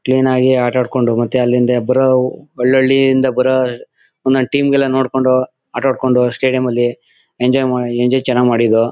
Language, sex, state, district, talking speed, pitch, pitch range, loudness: Kannada, male, Karnataka, Mysore, 140 wpm, 130 Hz, 125-130 Hz, -14 LUFS